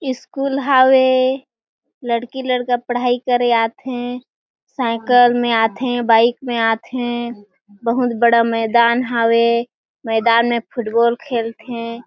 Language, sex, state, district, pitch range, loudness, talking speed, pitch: Chhattisgarhi, female, Chhattisgarh, Jashpur, 230-250 Hz, -17 LUFS, 105 wpm, 240 Hz